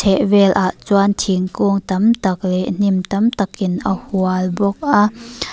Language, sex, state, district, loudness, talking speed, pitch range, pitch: Mizo, female, Mizoram, Aizawl, -17 LUFS, 150 wpm, 190-205 Hz, 195 Hz